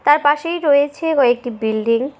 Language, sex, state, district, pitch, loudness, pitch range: Bengali, female, West Bengal, Cooch Behar, 285 Hz, -17 LUFS, 245-295 Hz